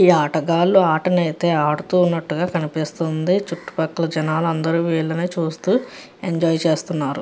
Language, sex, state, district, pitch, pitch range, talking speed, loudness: Telugu, female, Andhra Pradesh, Chittoor, 165 Hz, 160-175 Hz, 125 wpm, -20 LUFS